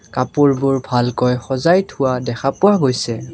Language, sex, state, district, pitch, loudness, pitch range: Assamese, male, Assam, Kamrup Metropolitan, 130 Hz, -17 LUFS, 125-140 Hz